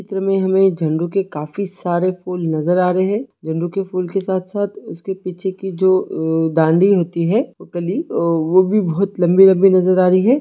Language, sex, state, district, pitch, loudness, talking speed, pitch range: Hindi, male, Jharkhand, Sahebganj, 185 Hz, -17 LUFS, 215 wpm, 175-195 Hz